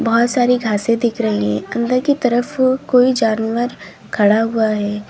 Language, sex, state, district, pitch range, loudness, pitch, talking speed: Hindi, female, Uttar Pradesh, Lalitpur, 215-250 Hz, -16 LUFS, 235 Hz, 165 wpm